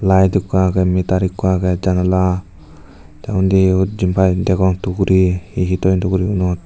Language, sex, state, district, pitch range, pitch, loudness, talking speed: Chakma, male, Tripura, Dhalai, 90-95 Hz, 95 Hz, -16 LUFS, 145 wpm